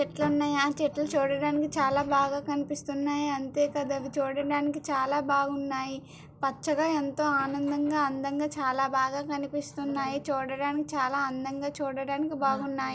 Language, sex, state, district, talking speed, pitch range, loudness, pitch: Telugu, female, Andhra Pradesh, Srikakulam, 115 wpm, 275-290 Hz, -29 LUFS, 280 Hz